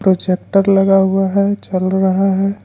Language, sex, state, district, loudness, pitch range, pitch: Hindi, male, Jharkhand, Ranchi, -14 LUFS, 190-195 Hz, 195 Hz